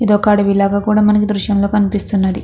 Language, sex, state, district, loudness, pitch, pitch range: Telugu, female, Andhra Pradesh, Krishna, -14 LUFS, 205 Hz, 200-210 Hz